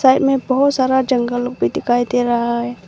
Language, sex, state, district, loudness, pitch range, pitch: Hindi, female, Arunachal Pradesh, Longding, -17 LUFS, 240-260 Hz, 245 Hz